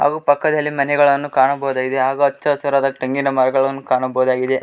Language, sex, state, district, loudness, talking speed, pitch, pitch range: Kannada, male, Karnataka, Koppal, -17 LUFS, 130 wpm, 135 Hz, 130-145 Hz